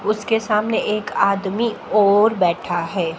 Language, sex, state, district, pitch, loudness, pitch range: Hindi, female, Haryana, Jhajjar, 205 Hz, -19 LUFS, 190-215 Hz